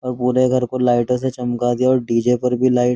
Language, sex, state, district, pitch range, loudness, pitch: Hindi, male, Uttar Pradesh, Jyotiba Phule Nagar, 125-130 Hz, -18 LUFS, 125 Hz